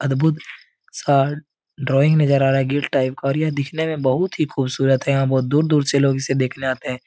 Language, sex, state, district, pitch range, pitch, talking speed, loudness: Hindi, male, Uttar Pradesh, Etah, 135-150 Hz, 140 Hz, 245 wpm, -19 LUFS